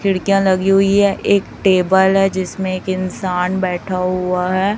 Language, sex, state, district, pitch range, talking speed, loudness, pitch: Hindi, female, Chhattisgarh, Raipur, 185-195 Hz, 165 wpm, -16 LUFS, 190 Hz